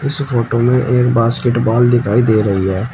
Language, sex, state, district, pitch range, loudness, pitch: Hindi, male, Uttar Pradesh, Shamli, 115-125 Hz, -14 LUFS, 120 Hz